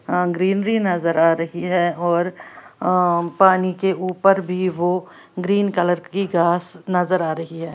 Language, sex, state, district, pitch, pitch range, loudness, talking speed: Hindi, female, Uttar Pradesh, Lalitpur, 180 Hz, 170-185 Hz, -19 LUFS, 165 wpm